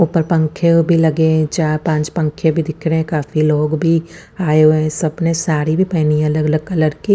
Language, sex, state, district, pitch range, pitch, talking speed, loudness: Hindi, female, Chandigarh, Chandigarh, 155-165 Hz, 160 Hz, 235 wpm, -15 LUFS